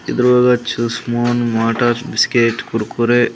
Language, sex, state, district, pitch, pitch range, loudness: Telugu, male, Andhra Pradesh, Sri Satya Sai, 120 Hz, 115-120 Hz, -16 LUFS